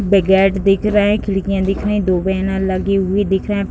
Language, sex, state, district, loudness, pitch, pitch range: Hindi, female, Uttar Pradesh, Deoria, -16 LUFS, 195 Hz, 190-200 Hz